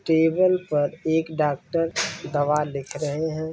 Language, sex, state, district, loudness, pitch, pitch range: Hindi, male, Bihar, Saran, -24 LUFS, 160 Hz, 150-165 Hz